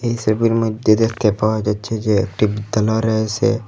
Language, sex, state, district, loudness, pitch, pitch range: Bengali, male, Assam, Hailakandi, -18 LUFS, 110 Hz, 105-115 Hz